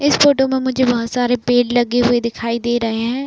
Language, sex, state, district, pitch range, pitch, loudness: Hindi, female, Uttar Pradesh, Budaun, 235-260 Hz, 245 Hz, -16 LUFS